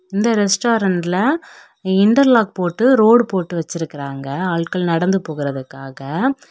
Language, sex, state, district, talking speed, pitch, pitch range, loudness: Tamil, female, Tamil Nadu, Kanyakumari, 90 wpm, 185 Hz, 165-225 Hz, -17 LUFS